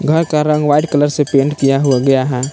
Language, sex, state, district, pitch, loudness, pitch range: Hindi, male, Jharkhand, Palamu, 145 Hz, -13 LUFS, 135-150 Hz